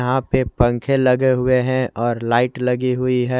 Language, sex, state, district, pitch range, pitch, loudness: Hindi, male, Jharkhand, Garhwa, 125-130 Hz, 125 Hz, -18 LUFS